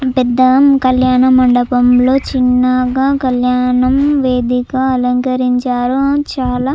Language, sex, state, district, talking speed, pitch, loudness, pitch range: Telugu, female, Andhra Pradesh, Chittoor, 80 wpm, 255 Hz, -12 LUFS, 250-260 Hz